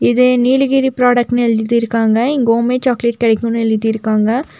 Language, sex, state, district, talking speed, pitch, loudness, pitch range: Tamil, female, Tamil Nadu, Nilgiris, 115 wpm, 235 Hz, -14 LUFS, 225-250 Hz